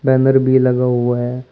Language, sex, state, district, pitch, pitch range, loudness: Hindi, male, Uttar Pradesh, Shamli, 125 Hz, 125-130 Hz, -15 LUFS